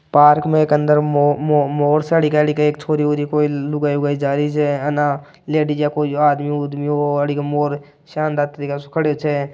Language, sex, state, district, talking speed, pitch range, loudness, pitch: Marwari, male, Rajasthan, Nagaur, 195 wpm, 145-150 Hz, -17 LUFS, 150 Hz